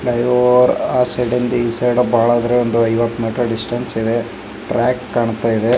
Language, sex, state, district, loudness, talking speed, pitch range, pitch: Kannada, male, Karnataka, Bijapur, -16 LUFS, 155 wpm, 115-125 Hz, 120 Hz